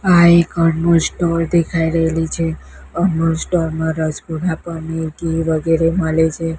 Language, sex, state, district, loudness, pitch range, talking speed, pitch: Gujarati, female, Gujarat, Gandhinagar, -17 LUFS, 160-170 Hz, 145 wpm, 165 Hz